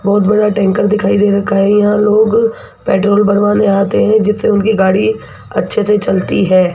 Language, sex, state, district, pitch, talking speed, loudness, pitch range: Hindi, female, Rajasthan, Jaipur, 205 Hz, 175 wpm, -12 LUFS, 200-210 Hz